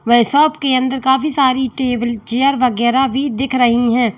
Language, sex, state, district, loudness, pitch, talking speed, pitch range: Hindi, female, Uttar Pradesh, Lalitpur, -15 LUFS, 255 Hz, 170 wpm, 240-270 Hz